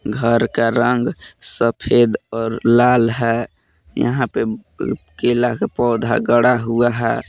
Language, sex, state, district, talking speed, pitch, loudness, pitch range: Hindi, male, Jharkhand, Palamu, 130 wpm, 120 Hz, -17 LUFS, 115-120 Hz